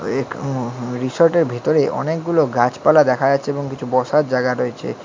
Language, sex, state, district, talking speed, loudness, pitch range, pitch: Bengali, male, West Bengal, Alipurduar, 165 wpm, -18 LUFS, 125-145 Hz, 130 Hz